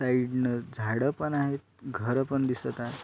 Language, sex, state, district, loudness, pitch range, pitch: Marathi, male, Maharashtra, Sindhudurg, -30 LUFS, 120-140 Hz, 130 Hz